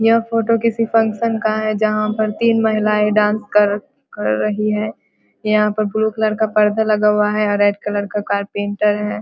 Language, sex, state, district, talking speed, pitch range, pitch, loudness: Hindi, female, Bihar, Vaishali, 200 wpm, 210-220 Hz, 215 Hz, -17 LUFS